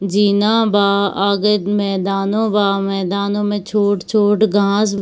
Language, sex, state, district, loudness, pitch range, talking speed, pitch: Hindi, female, Bihar, Kishanganj, -16 LUFS, 200-205 Hz, 120 wpm, 205 Hz